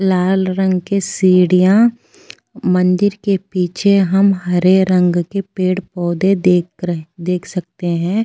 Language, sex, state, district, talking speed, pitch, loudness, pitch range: Hindi, female, Uttar Pradesh, Jyotiba Phule Nagar, 130 wpm, 185 Hz, -15 LUFS, 180-195 Hz